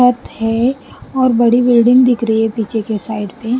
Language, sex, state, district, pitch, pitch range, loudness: Hindi, female, Punjab, Pathankot, 235 Hz, 225-250 Hz, -14 LUFS